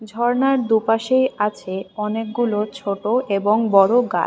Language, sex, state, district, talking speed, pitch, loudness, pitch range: Bengali, female, Tripura, West Tripura, 110 wpm, 220 Hz, -19 LUFS, 205-240 Hz